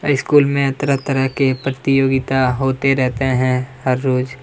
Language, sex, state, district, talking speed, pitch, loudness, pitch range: Hindi, male, Chhattisgarh, Kabirdham, 175 wpm, 135 Hz, -17 LUFS, 130-135 Hz